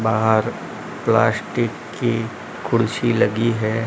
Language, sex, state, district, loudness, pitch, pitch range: Hindi, male, Rajasthan, Bikaner, -20 LUFS, 110 Hz, 110-115 Hz